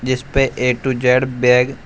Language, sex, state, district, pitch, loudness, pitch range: Hindi, male, Uttar Pradesh, Shamli, 125 Hz, -16 LUFS, 125-130 Hz